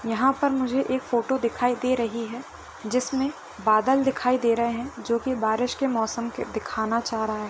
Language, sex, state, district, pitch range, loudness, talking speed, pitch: Hindi, female, Bihar, Gopalganj, 230-265 Hz, -25 LUFS, 190 wpm, 240 Hz